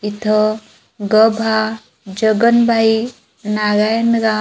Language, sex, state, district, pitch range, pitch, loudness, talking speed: Marathi, female, Maharashtra, Gondia, 215-225 Hz, 220 Hz, -15 LUFS, 70 wpm